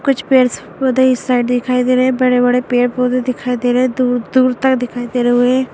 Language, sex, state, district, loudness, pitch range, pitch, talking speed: Hindi, female, Bihar, Madhepura, -14 LUFS, 245-255 Hz, 250 Hz, 230 wpm